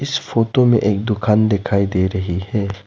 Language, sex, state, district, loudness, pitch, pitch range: Hindi, male, Arunachal Pradesh, Lower Dibang Valley, -17 LUFS, 105 Hz, 100-115 Hz